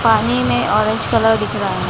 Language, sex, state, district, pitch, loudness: Hindi, female, Bihar, Gaya, 215 Hz, -16 LUFS